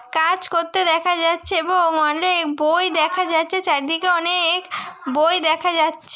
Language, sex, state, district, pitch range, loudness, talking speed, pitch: Bengali, female, West Bengal, Dakshin Dinajpur, 320-360 Hz, -18 LUFS, 145 wpm, 335 Hz